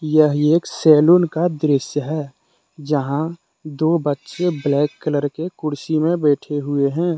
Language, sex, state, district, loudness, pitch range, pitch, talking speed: Hindi, male, Jharkhand, Deoghar, -19 LUFS, 145-165 Hz, 155 Hz, 140 wpm